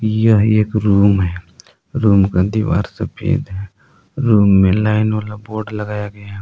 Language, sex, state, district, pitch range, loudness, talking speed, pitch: Hindi, male, Jharkhand, Palamu, 100-110 Hz, -16 LUFS, 160 wpm, 105 Hz